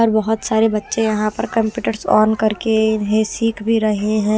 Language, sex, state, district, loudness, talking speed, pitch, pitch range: Hindi, female, Himachal Pradesh, Shimla, -17 LUFS, 190 wpm, 220 Hz, 215-225 Hz